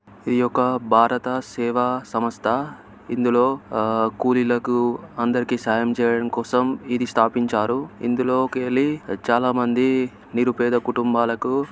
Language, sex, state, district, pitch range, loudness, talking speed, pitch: Telugu, male, Telangana, Nalgonda, 115-125 Hz, -21 LUFS, 80 wpm, 120 Hz